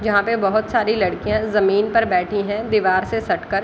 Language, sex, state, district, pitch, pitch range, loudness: Hindi, female, Bihar, Kishanganj, 210 Hz, 195-220 Hz, -19 LUFS